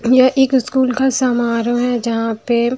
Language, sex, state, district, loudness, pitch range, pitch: Hindi, female, Maharashtra, Washim, -16 LUFS, 235-260 Hz, 245 Hz